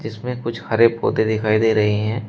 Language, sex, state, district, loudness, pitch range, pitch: Hindi, male, Uttar Pradesh, Shamli, -19 LUFS, 110-115 Hz, 110 Hz